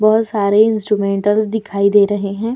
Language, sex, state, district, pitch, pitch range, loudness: Hindi, female, Bihar, Vaishali, 210 Hz, 200-220 Hz, -15 LUFS